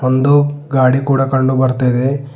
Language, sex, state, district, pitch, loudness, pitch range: Kannada, male, Karnataka, Bidar, 135 Hz, -14 LUFS, 130-140 Hz